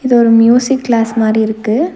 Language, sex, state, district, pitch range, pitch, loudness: Tamil, female, Tamil Nadu, Nilgiris, 225-250 Hz, 230 Hz, -11 LUFS